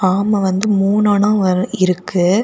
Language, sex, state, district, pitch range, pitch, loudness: Tamil, female, Tamil Nadu, Kanyakumari, 185-205 Hz, 195 Hz, -15 LUFS